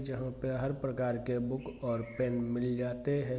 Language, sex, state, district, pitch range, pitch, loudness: Hindi, male, Bihar, Vaishali, 120-130 Hz, 125 Hz, -35 LUFS